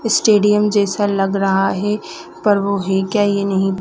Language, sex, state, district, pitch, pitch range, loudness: Hindi, female, Chhattisgarh, Raigarh, 200 Hz, 195-210 Hz, -16 LUFS